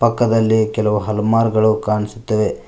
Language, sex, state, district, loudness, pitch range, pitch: Kannada, male, Karnataka, Koppal, -17 LUFS, 105-115 Hz, 110 Hz